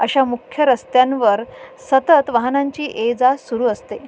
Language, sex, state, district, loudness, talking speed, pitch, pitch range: Marathi, female, Maharashtra, Sindhudurg, -17 LUFS, 130 wpm, 260 Hz, 235-280 Hz